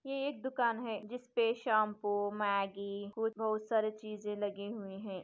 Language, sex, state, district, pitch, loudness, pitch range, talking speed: Hindi, female, Chhattisgarh, Bastar, 215 Hz, -36 LUFS, 205-230 Hz, 160 wpm